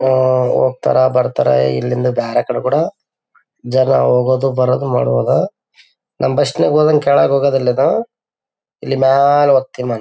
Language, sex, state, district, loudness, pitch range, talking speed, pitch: Kannada, male, Karnataka, Bellary, -14 LUFS, 125-140 Hz, 130 wpm, 130 Hz